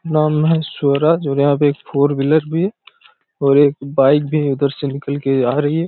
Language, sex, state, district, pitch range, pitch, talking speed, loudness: Hindi, male, Chhattisgarh, Raigarh, 140-155 Hz, 145 Hz, 225 wpm, -16 LUFS